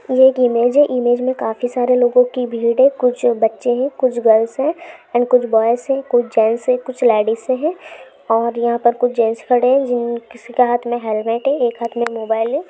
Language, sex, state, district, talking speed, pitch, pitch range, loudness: Hindi, female, Jharkhand, Sahebganj, 215 wpm, 245 Hz, 235-255 Hz, -16 LUFS